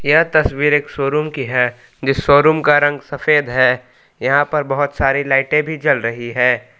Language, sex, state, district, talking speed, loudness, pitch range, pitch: Hindi, male, Jharkhand, Palamu, 185 wpm, -16 LUFS, 125-150 Hz, 140 Hz